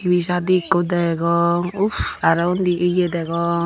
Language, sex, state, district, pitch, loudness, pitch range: Chakma, female, Tripura, Unakoti, 175 Hz, -19 LUFS, 170-180 Hz